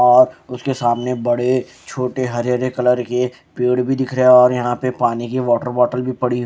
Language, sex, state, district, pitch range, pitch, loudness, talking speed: Hindi, male, Haryana, Charkhi Dadri, 125-130 Hz, 125 Hz, -17 LUFS, 215 wpm